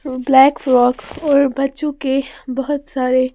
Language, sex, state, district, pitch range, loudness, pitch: Hindi, female, Haryana, Jhajjar, 255-280 Hz, -16 LUFS, 270 Hz